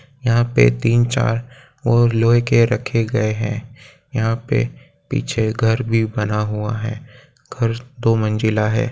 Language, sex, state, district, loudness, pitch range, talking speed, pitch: Hindi, male, Chhattisgarh, Korba, -19 LUFS, 110-125 Hz, 150 wpm, 115 Hz